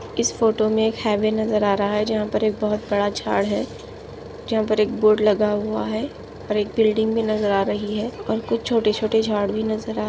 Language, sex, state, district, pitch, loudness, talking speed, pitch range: Hindi, female, Maharashtra, Solapur, 215 Hz, -21 LUFS, 230 wpm, 210-220 Hz